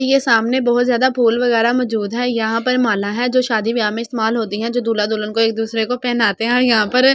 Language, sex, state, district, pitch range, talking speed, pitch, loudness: Hindi, female, Delhi, New Delhi, 225-245 Hz, 285 wpm, 230 Hz, -17 LUFS